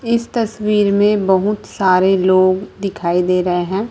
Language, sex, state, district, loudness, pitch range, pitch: Hindi, female, Chhattisgarh, Raipur, -15 LUFS, 185-210 Hz, 195 Hz